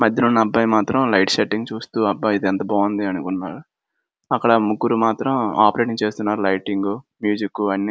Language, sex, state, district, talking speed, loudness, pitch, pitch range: Telugu, male, Andhra Pradesh, Srikakulam, 160 wpm, -19 LUFS, 105 Hz, 100-115 Hz